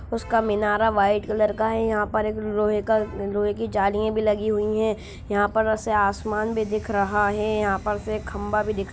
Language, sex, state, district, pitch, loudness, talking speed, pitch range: Hindi, female, Bihar, Sitamarhi, 215 Hz, -23 LUFS, 220 wpm, 205-220 Hz